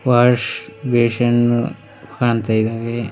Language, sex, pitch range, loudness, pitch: Kannada, male, 115-120 Hz, -18 LUFS, 120 Hz